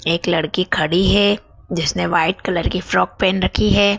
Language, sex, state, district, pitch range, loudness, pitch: Hindi, female, Madhya Pradesh, Dhar, 170-200 Hz, -18 LUFS, 185 Hz